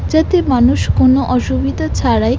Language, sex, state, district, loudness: Bengali, female, West Bengal, Jhargram, -14 LUFS